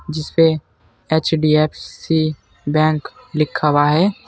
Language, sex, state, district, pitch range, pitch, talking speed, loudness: Hindi, male, Uttar Pradesh, Saharanpur, 145-160 Hz, 155 Hz, 100 wpm, -17 LUFS